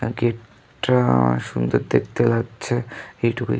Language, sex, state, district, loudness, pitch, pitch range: Bengali, male, West Bengal, North 24 Parganas, -21 LUFS, 115 Hz, 80-120 Hz